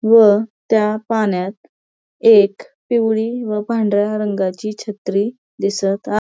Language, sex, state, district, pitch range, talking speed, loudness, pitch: Marathi, female, Maharashtra, Pune, 205-235 Hz, 105 wpm, -17 LUFS, 215 Hz